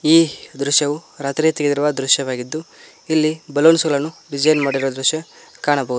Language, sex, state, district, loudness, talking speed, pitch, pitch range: Kannada, male, Karnataka, Koppal, -18 LUFS, 120 wpm, 145 Hz, 140-155 Hz